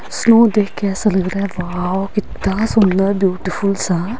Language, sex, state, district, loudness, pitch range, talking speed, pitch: Hindi, female, Himachal Pradesh, Shimla, -16 LUFS, 190-210 Hz, 170 wpm, 195 Hz